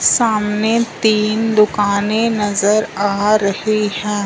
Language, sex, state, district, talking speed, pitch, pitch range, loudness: Hindi, male, Punjab, Fazilka, 100 wpm, 210 Hz, 205-220 Hz, -15 LUFS